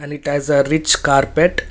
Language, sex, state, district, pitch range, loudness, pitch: English, male, Karnataka, Bangalore, 140-150 Hz, -16 LUFS, 145 Hz